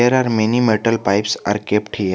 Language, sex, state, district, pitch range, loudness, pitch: English, male, Jharkhand, Garhwa, 105-120 Hz, -17 LUFS, 110 Hz